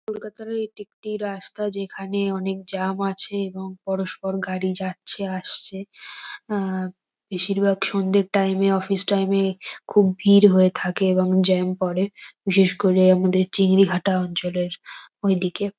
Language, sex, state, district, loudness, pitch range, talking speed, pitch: Bengali, female, West Bengal, Kolkata, -21 LUFS, 185-200 Hz, 135 wpm, 195 Hz